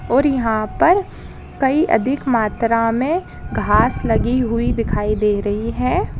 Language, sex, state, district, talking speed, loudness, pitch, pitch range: Hindi, female, Rajasthan, Nagaur, 135 wpm, -18 LUFS, 230 Hz, 215-270 Hz